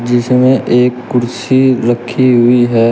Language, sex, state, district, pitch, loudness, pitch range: Hindi, male, Uttar Pradesh, Shamli, 125 Hz, -11 LUFS, 120-125 Hz